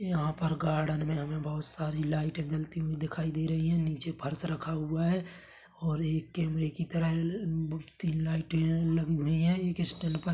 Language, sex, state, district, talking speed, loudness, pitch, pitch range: Hindi, male, Chhattisgarh, Bilaspur, 195 wpm, -32 LUFS, 160 Hz, 155-165 Hz